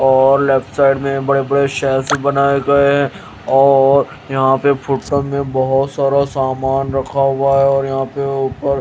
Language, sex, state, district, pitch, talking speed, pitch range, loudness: Hindi, male, Haryana, Jhajjar, 135 Hz, 170 wpm, 135-140 Hz, -15 LUFS